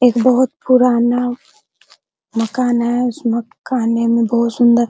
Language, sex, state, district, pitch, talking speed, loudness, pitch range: Hindi, female, Bihar, Araria, 240 Hz, 135 wpm, -16 LUFS, 235-250 Hz